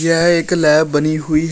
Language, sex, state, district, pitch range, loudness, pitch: Hindi, male, Uttar Pradesh, Shamli, 155-165 Hz, -14 LUFS, 160 Hz